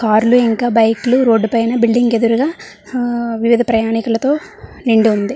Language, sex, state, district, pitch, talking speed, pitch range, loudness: Telugu, female, Andhra Pradesh, Visakhapatnam, 230 Hz, 145 wpm, 225-245 Hz, -14 LUFS